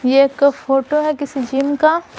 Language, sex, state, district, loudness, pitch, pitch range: Hindi, female, Bihar, Patna, -16 LUFS, 280 Hz, 270-300 Hz